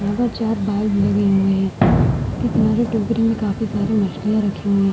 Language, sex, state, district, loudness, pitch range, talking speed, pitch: Hindi, female, Bihar, Vaishali, -19 LUFS, 200-220 Hz, 195 wpm, 205 Hz